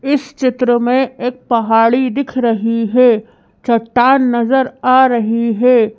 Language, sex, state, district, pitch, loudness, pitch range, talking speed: Hindi, female, Madhya Pradesh, Bhopal, 245 Hz, -13 LUFS, 230-260 Hz, 130 wpm